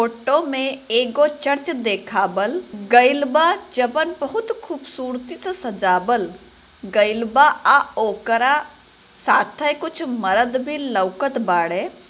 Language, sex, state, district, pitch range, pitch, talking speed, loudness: Bhojpuri, female, Bihar, Gopalganj, 220-295 Hz, 260 Hz, 100 wpm, -19 LUFS